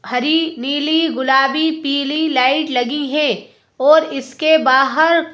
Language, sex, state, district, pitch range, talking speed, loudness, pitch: Hindi, female, Madhya Pradesh, Bhopal, 270-315 Hz, 110 wpm, -15 LUFS, 290 Hz